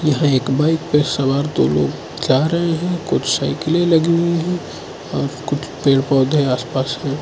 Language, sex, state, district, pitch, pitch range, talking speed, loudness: Hindi, male, Arunachal Pradesh, Lower Dibang Valley, 145 Hz, 135-165 Hz, 190 wpm, -18 LUFS